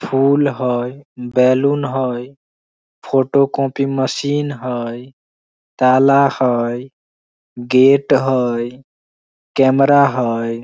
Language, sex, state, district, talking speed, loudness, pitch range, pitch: Maithili, male, Bihar, Samastipur, 80 wpm, -16 LUFS, 120-135 Hz, 130 Hz